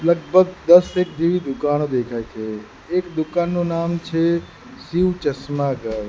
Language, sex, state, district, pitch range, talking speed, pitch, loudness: Gujarati, male, Gujarat, Gandhinagar, 135-175 Hz, 140 wpm, 165 Hz, -20 LUFS